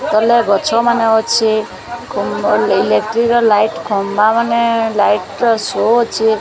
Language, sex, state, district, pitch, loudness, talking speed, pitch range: Odia, female, Odisha, Sambalpur, 225 Hz, -14 LUFS, 120 wpm, 210-235 Hz